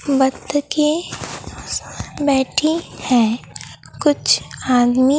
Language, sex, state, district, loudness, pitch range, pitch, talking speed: Hindi, female, Bihar, Katihar, -18 LUFS, 255-300 Hz, 275 Hz, 60 wpm